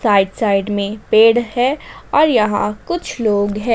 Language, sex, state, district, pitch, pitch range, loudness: Hindi, female, Jharkhand, Ranchi, 215 Hz, 205-240 Hz, -16 LUFS